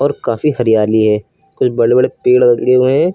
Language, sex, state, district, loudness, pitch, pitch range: Hindi, male, Uttar Pradesh, Lucknow, -13 LUFS, 120 Hz, 110-125 Hz